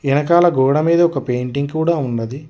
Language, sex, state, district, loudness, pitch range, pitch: Telugu, male, Telangana, Hyderabad, -16 LUFS, 130-165 Hz, 140 Hz